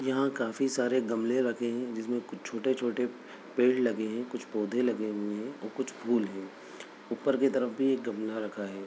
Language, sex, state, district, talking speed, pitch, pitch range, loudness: Hindi, male, Bihar, Begusarai, 195 wpm, 120 Hz, 110-130 Hz, -31 LUFS